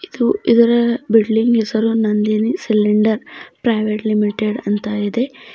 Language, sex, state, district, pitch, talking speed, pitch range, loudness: Kannada, female, Karnataka, Bidar, 220 Hz, 110 wpm, 215-235 Hz, -16 LUFS